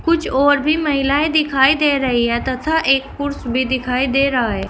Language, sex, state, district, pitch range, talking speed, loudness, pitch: Hindi, female, Uttar Pradesh, Shamli, 255-295 Hz, 205 wpm, -16 LUFS, 270 Hz